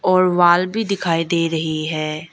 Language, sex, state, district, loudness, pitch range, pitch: Hindi, female, Arunachal Pradesh, Lower Dibang Valley, -18 LUFS, 160-185 Hz, 170 Hz